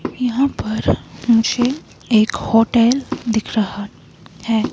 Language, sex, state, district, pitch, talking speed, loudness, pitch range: Hindi, female, Himachal Pradesh, Shimla, 230 Hz, 100 wpm, -18 LUFS, 220-255 Hz